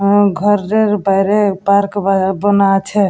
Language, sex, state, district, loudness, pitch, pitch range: Bengali, female, West Bengal, Jalpaiguri, -13 LUFS, 200 Hz, 195-205 Hz